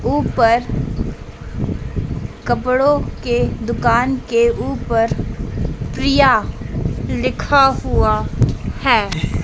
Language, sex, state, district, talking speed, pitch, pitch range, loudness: Hindi, female, Madhya Pradesh, Dhar, 65 wpm, 255 Hz, 235-285 Hz, -18 LUFS